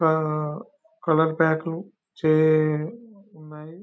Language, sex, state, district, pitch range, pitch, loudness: Telugu, male, Telangana, Nalgonda, 155-190 Hz, 160 Hz, -23 LUFS